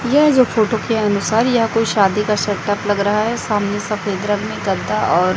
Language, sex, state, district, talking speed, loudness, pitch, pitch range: Hindi, female, Chhattisgarh, Raipur, 210 wpm, -17 LUFS, 210 Hz, 205-225 Hz